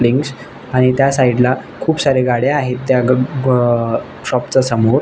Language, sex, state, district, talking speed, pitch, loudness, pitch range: Marathi, male, Maharashtra, Nagpur, 165 wpm, 130 Hz, -15 LUFS, 120-135 Hz